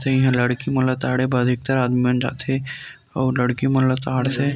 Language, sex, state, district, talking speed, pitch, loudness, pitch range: Chhattisgarhi, male, Chhattisgarh, Rajnandgaon, 195 wpm, 130 Hz, -20 LUFS, 125-135 Hz